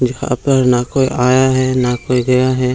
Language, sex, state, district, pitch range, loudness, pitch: Hindi, male, Bihar, Gaya, 125-130 Hz, -14 LUFS, 130 Hz